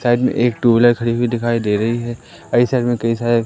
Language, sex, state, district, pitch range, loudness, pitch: Hindi, male, Madhya Pradesh, Katni, 115-120 Hz, -17 LUFS, 120 Hz